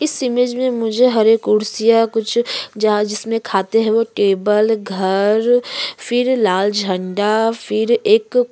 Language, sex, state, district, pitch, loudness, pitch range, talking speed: Hindi, female, Uttarakhand, Tehri Garhwal, 225 Hz, -16 LUFS, 210-245 Hz, 140 wpm